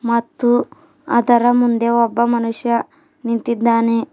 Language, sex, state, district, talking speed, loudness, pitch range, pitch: Kannada, female, Karnataka, Bidar, 85 wpm, -16 LUFS, 235-245 Hz, 235 Hz